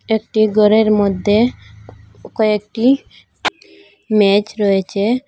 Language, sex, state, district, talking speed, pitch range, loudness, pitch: Bengali, female, Assam, Hailakandi, 70 wpm, 195-220 Hz, -15 LUFS, 210 Hz